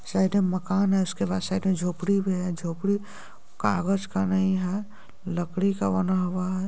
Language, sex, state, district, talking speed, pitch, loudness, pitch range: Hindi, female, Bihar, Madhepura, 180 wpm, 190 Hz, -26 LUFS, 180-195 Hz